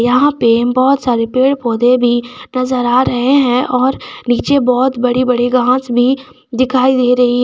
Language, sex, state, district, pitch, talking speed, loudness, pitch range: Hindi, female, Jharkhand, Garhwa, 250 Hz, 175 wpm, -13 LUFS, 245-255 Hz